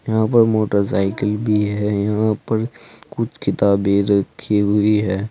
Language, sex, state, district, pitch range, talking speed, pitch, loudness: Hindi, male, Uttar Pradesh, Saharanpur, 100-110 Hz, 135 wpm, 105 Hz, -18 LUFS